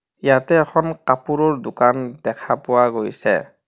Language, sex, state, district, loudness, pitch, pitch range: Assamese, male, Assam, Kamrup Metropolitan, -19 LUFS, 130 Hz, 125-155 Hz